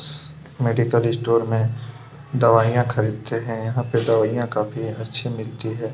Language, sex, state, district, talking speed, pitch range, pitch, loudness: Hindi, male, Chhattisgarh, Kabirdham, 120 wpm, 115-120 Hz, 115 Hz, -21 LUFS